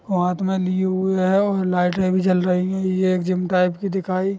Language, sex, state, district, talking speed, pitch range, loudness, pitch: Hindi, male, Chhattisgarh, Sukma, 260 wpm, 185-190 Hz, -20 LUFS, 185 Hz